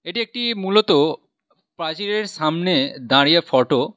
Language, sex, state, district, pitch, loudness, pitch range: Bengali, male, West Bengal, Alipurduar, 190 Hz, -19 LUFS, 160-220 Hz